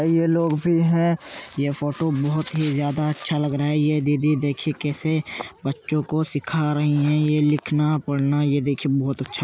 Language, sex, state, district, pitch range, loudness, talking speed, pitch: Hindi, male, Uttar Pradesh, Jyotiba Phule Nagar, 145-155 Hz, -22 LUFS, 190 wpm, 150 Hz